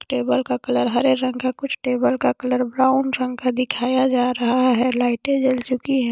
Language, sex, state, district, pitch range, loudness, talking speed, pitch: Hindi, female, Jharkhand, Sahebganj, 245-260 Hz, -20 LUFS, 205 wpm, 255 Hz